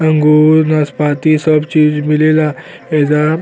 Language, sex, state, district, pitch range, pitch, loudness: Bhojpuri, male, Uttar Pradesh, Gorakhpur, 150-155 Hz, 155 Hz, -12 LUFS